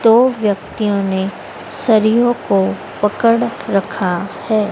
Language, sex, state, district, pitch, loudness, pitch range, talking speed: Hindi, female, Madhya Pradesh, Dhar, 215 Hz, -16 LUFS, 195-230 Hz, 90 wpm